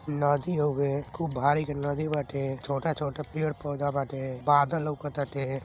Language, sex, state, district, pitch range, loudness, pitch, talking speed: Hindi, male, Uttar Pradesh, Deoria, 140-150 Hz, -29 LUFS, 145 Hz, 160 wpm